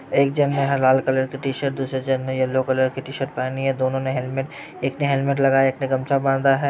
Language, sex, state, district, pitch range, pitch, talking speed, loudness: Hindi, male, Uttar Pradesh, Ghazipur, 130-135 Hz, 135 Hz, 260 wpm, -21 LUFS